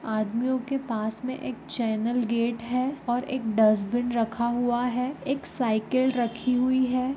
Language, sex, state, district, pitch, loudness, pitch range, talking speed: Hindi, female, Goa, North and South Goa, 245 Hz, -26 LUFS, 230-255 Hz, 160 wpm